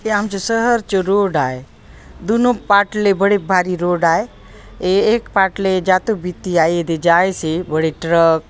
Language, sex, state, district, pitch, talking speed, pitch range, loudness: Halbi, female, Chhattisgarh, Bastar, 185 Hz, 175 wpm, 165-205 Hz, -16 LUFS